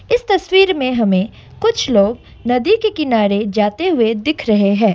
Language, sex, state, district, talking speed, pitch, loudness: Hindi, female, Assam, Kamrup Metropolitan, 170 wpm, 245 Hz, -15 LUFS